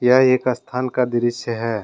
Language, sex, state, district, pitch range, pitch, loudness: Hindi, male, Jharkhand, Deoghar, 120-130 Hz, 125 Hz, -19 LUFS